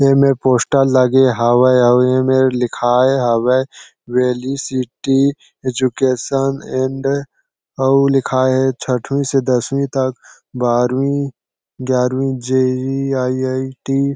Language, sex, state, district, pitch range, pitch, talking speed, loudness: Chhattisgarhi, male, Chhattisgarh, Sarguja, 125-135 Hz, 130 Hz, 125 wpm, -16 LUFS